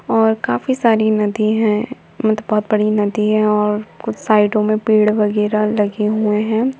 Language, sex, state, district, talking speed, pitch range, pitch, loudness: Hindi, female, Uttar Pradesh, Etah, 170 wpm, 210-220 Hz, 215 Hz, -16 LUFS